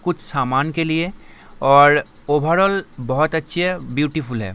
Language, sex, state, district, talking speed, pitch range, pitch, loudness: Hindi, male, Bihar, Darbhanga, 160 wpm, 135-170 Hz, 155 Hz, -18 LUFS